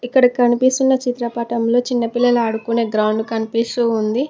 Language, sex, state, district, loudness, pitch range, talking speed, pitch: Telugu, female, Telangana, Mahabubabad, -17 LUFS, 230-245 Hz, 110 wpm, 235 Hz